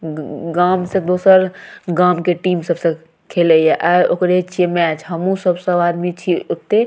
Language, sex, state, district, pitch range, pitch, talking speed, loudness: Maithili, female, Bihar, Madhepura, 170-180 Hz, 180 Hz, 175 wpm, -16 LUFS